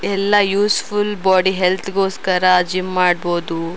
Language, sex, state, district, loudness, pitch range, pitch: Kannada, female, Karnataka, Raichur, -17 LUFS, 180-200 Hz, 190 Hz